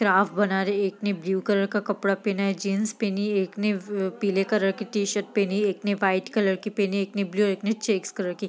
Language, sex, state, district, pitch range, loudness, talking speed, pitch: Hindi, female, Bihar, East Champaran, 195-205 Hz, -25 LUFS, 290 wpm, 200 Hz